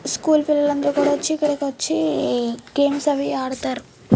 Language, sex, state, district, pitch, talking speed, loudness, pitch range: Telugu, female, Andhra Pradesh, Srikakulam, 290 Hz, 145 wpm, -20 LUFS, 280-300 Hz